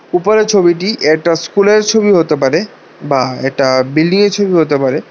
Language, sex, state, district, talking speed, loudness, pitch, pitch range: Bengali, male, Tripura, West Tripura, 175 wpm, -12 LUFS, 170 Hz, 145-205 Hz